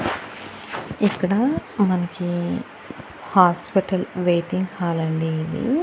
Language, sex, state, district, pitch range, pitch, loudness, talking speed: Telugu, female, Andhra Pradesh, Annamaya, 170-195 Hz, 180 Hz, -22 LUFS, 70 wpm